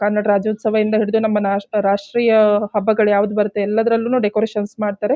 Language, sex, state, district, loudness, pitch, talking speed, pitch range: Kannada, female, Karnataka, Shimoga, -17 LUFS, 210 Hz, 130 wpm, 205-220 Hz